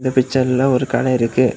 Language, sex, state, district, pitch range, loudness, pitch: Tamil, male, Tamil Nadu, Kanyakumari, 125-130 Hz, -17 LUFS, 130 Hz